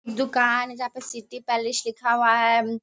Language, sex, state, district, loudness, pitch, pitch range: Hindi, female, Bihar, Sitamarhi, -23 LUFS, 235 Hz, 230-245 Hz